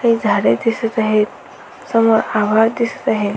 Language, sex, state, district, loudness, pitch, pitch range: Marathi, female, Maharashtra, Aurangabad, -16 LUFS, 225 Hz, 215-230 Hz